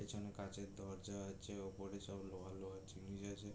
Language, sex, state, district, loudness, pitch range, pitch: Bengali, male, West Bengal, Jalpaiguri, -50 LUFS, 95-100 Hz, 100 Hz